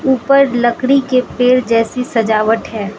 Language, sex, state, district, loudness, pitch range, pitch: Hindi, female, Manipur, Imphal West, -14 LUFS, 225-255 Hz, 245 Hz